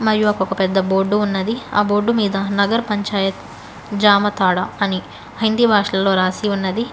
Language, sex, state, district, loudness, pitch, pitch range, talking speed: Telugu, female, Telangana, Hyderabad, -18 LUFS, 205 Hz, 195-215 Hz, 165 wpm